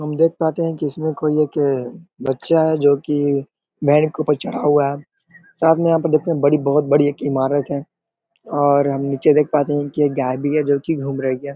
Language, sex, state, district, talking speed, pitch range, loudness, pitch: Hindi, male, Chhattisgarh, Korba, 235 wpm, 140-160 Hz, -18 LUFS, 145 Hz